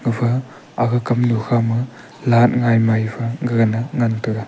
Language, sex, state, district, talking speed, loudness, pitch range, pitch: Wancho, male, Arunachal Pradesh, Longding, 160 wpm, -18 LUFS, 115-120 Hz, 120 Hz